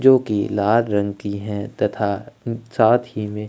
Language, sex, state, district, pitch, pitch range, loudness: Hindi, male, Chhattisgarh, Sukma, 105 Hz, 100-120 Hz, -21 LUFS